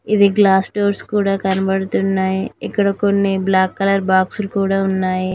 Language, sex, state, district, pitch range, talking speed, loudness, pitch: Telugu, female, Telangana, Mahabubabad, 190-200 Hz, 145 wpm, -17 LUFS, 195 Hz